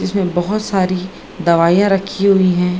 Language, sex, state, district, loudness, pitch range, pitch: Hindi, female, Bihar, Gaya, -15 LUFS, 180-195 Hz, 185 Hz